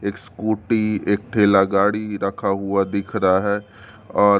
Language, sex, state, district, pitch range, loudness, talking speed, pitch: Hindi, male, Delhi, New Delhi, 100-105 Hz, -20 LUFS, 150 wpm, 100 Hz